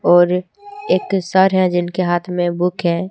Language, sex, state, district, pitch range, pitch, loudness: Hindi, female, Jharkhand, Deoghar, 175-190 Hz, 180 Hz, -17 LUFS